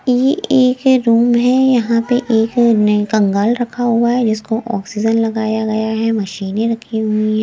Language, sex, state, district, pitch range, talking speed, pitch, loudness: Hindi, female, Himachal Pradesh, Shimla, 220-245 Hz, 160 wpm, 225 Hz, -15 LUFS